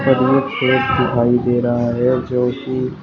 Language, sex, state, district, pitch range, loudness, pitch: Hindi, male, Uttar Pradesh, Shamli, 120-130 Hz, -17 LUFS, 130 Hz